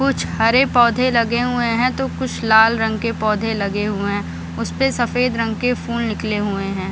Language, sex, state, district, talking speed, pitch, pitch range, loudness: Hindi, female, Bihar, Samastipur, 200 wpm, 225 Hz, 205-240 Hz, -18 LUFS